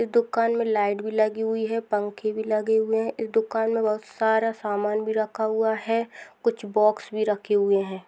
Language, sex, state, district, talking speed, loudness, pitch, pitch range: Hindi, female, Maharashtra, Dhule, 200 wpm, -25 LUFS, 220 Hz, 210-225 Hz